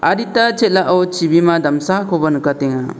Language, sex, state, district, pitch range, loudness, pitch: Garo, male, Meghalaya, South Garo Hills, 150-195 Hz, -15 LUFS, 170 Hz